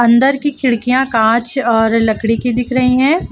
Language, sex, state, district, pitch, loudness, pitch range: Hindi, female, Uttar Pradesh, Lucknow, 245 Hz, -14 LUFS, 230-265 Hz